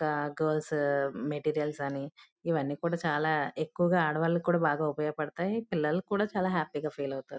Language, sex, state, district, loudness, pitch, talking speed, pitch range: Telugu, female, Andhra Pradesh, Guntur, -31 LUFS, 155 Hz, 160 wpm, 145-170 Hz